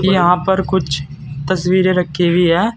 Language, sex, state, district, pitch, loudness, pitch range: Hindi, male, Uttar Pradesh, Saharanpur, 180 Hz, -15 LUFS, 170-185 Hz